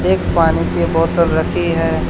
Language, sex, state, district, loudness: Hindi, male, Haryana, Charkhi Dadri, -15 LUFS